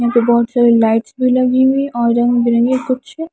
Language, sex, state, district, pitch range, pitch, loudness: Hindi, female, Himachal Pradesh, Shimla, 235-260 Hz, 240 Hz, -14 LUFS